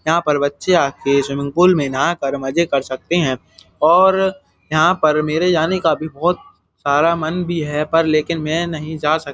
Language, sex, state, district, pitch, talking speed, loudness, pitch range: Hindi, male, Uttar Pradesh, Budaun, 155 Hz, 200 wpm, -17 LUFS, 140-170 Hz